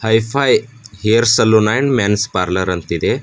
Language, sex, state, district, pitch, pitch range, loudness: Kannada, male, Karnataka, Bidar, 110 Hz, 100-120 Hz, -15 LUFS